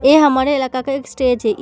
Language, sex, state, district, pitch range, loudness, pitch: Hindi, female, Bihar, Samastipur, 255-280 Hz, -16 LUFS, 265 Hz